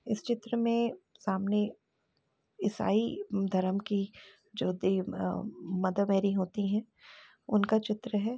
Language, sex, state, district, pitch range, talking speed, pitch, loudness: Hindi, female, Uttar Pradesh, Jalaun, 190-220 Hz, 115 wpm, 205 Hz, -32 LUFS